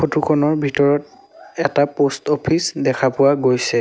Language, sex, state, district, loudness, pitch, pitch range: Assamese, male, Assam, Sonitpur, -18 LUFS, 145 Hz, 135-150 Hz